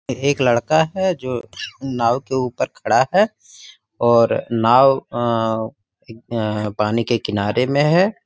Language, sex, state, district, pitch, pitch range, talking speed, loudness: Hindi, male, Jharkhand, Sahebganj, 120 Hz, 115-135 Hz, 140 wpm, -18 LUFS